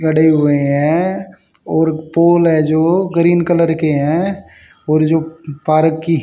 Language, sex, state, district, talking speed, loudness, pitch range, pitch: Hindi, male, Haryana, Jhajjar, 145 wpm, -14 LUFS, 155-170 Hz, 160 Hz